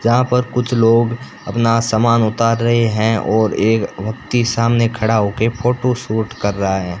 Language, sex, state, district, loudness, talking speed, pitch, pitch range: Hindi, male, Rajasthan, Bikaner, -16 LUFS, 170 wpm, 115 Hz, 110-120 Hz